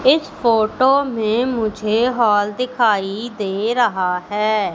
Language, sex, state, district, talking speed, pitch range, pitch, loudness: Hindi, female, Madhya Pradesh, Katni, 115 wpm, 210-250 Hz, 220 Hz, -18 LUFS